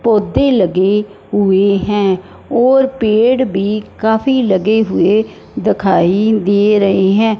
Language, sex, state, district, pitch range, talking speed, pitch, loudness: Hindi, male, Punjab, Fazilka, 200-225 Hz, 115 wpm, 210 Hz, -13 LUFS